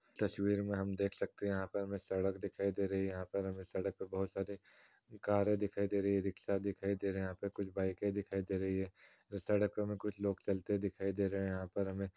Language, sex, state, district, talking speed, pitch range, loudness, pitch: Hindi, male, Uttar Pradesh, Muzaffarnagar, 240 wpm, 95-100 Hz, -38 LUFS, 100 Hz